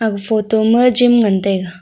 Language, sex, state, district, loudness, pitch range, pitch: Wancho, female, Arunachal Pradesh, Longding, -13 LUFS, 195-235 Hz, 220 Hz